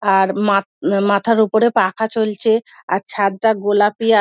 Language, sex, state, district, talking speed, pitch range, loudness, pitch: Bengali, female, West Bengal, Dakshin Dinajpur, 145 wpm, 200-225 Hz, -17 LUFS, 210 Hz